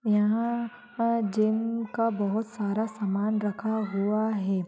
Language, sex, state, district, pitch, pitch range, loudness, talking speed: Hindi, female, Maharashtra, Aurangabad, 215 Hz, 205-230 Hz, -28 LUFS, 115 wpm